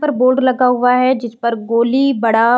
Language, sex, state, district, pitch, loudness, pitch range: Hindi, female, Uttar Pradesh, Varanasi, 250 Hz, -14 LUFS, 235-255 Hz